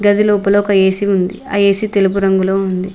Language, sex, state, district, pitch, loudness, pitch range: Telugu, female, Telangana, Mahabubabad, 200 Hz, -13 LUFS, 190-205 Hz